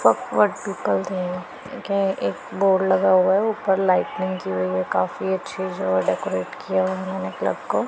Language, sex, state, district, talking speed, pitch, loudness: Hindi, female, Punjab, Pathankot, 175 wpm, 185 Hz, -22 LUFS